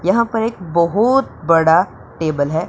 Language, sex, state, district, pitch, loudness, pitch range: Hindi, male, Punjab, Pathankot, 170 Hz, -16 LUFS, 160-225 Hz